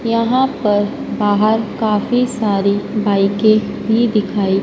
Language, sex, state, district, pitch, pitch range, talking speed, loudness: Hindi, female, Madhya Pradesh, Dhar, 215 Hz, 205-230 Hz, 105 wpm, -16 LUFS